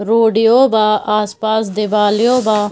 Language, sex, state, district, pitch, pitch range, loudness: Hindi, female, Bihar, Darbhanga, 215 Hz, 210-225 Hz, -13 LUFS